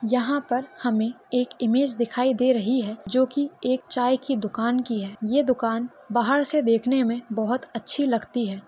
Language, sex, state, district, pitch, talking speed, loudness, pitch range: Hindi, female, Maharashtra, Pune, 245 Hz, 185 wpm, -24 LUFS, 230-260 Hz